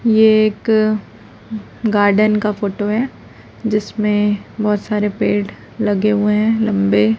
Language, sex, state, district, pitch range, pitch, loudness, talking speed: Hindi, female, Chhattisgarh, Raipur, 205-215 Hz, 210 Hz, -16 LUFS, 115 wpm